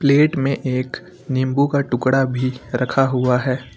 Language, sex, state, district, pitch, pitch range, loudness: Hindi, male, Uttar Pradesh, Lucknow, 130 Hz, 125-140 Hz, -19 LUFS